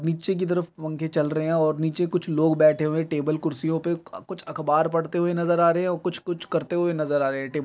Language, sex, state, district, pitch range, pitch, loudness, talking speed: Hindi, male, Uttar Pradesh, Budaun, 155-175 Hz, 160 Hz, -24 LUFS, 290 wpm